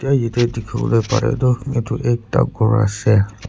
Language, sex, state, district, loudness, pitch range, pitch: Nagamese, male, Nagaland, Kohima, -18 LUFS, 115-125 Hz, 120 Hz